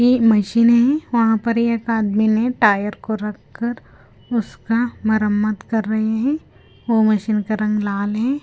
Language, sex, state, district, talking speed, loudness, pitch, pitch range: Hindi, female, Punjab, Kapurthala, 155 wpm, -19 LUFS, 220 Hz, 215-235 Hz